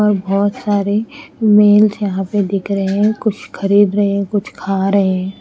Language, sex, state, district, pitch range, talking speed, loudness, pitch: Hindi, female, Haryana, Rohtak, 195-210 Hz, 175 wpm, -15 LUFS, 205 Hz